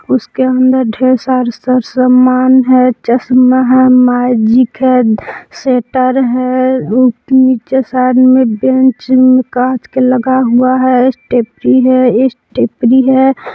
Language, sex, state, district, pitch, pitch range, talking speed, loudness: Hindi, female, Jharkhand, Palamu, 255 Hz, 250-260 Hz, 110 wpm, -10 LUFS